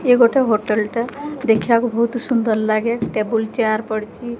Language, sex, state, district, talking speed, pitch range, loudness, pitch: Odia, female, Odisha, Khordha, 150 wpm, 215-240 Hz, -18 LUFS, 230 Hz